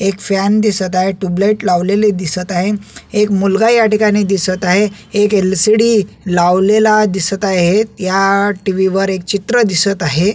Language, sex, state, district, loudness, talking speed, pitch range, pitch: Marathi, male, Maharashtra, Solapur, -13 LUFS, 145 wpm, 185-210 Hz, 195 Hz